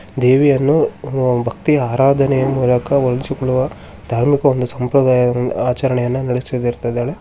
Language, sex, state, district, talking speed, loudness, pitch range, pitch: Kannada, male, Karnataka, Shimoga, 65 wpm, -16 LUFS, 125-135 Hz, 130 Hz